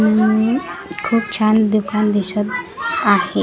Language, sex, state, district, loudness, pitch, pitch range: Marathi, female, Maharashtra, Gondia, -17 LUFS, 215 Hz, 210-220 Hz